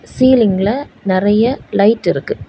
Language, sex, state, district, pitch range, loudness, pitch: Tamil, female, Tamil Nadu, Kanyakumari, 195-245 Hz, -14 LUFS, 210 Hz